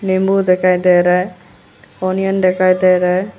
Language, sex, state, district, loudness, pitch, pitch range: Hindi, female, Arunachal Pradesh, Lower Dibang Valley, -14 LUFS, 185 Hz, 180-185 Hz